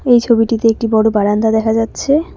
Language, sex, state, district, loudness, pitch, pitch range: Bengali, female, West Bengal, Cooch Behar, -13 LUFS, 225 Hz, 220-235 Hz